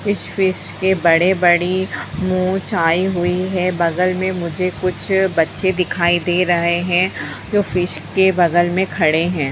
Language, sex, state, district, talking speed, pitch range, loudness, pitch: Hindi, female, Bihar, Jamui, 150 wpm, 175-190 Hz, -17 LUFS, 180 Hz